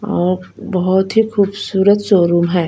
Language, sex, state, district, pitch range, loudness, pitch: Hindi, female, Punjab, Fazilka, 180-205 Hz, -15 LUFS, 190 Hz